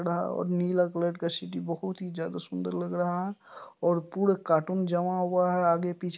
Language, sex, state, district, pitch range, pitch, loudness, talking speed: Hindi, male, Bihar, Supaul, 170-180 Hz, 175 Hz, -29 LUFS, 195 wpm